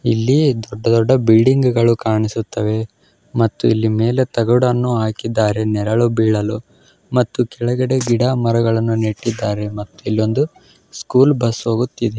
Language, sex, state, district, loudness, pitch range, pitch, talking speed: Kannada, male, Karnataka, Bellary, -17 LUFS, 110-125 Hz, 115 Hz, 110 wpm